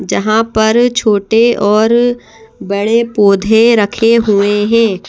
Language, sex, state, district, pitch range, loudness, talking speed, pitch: Hindi, female, Madhya Pradesh, Bhopal, 205-230 Hz, -11 LUFS, 105 wpm, 220 Hz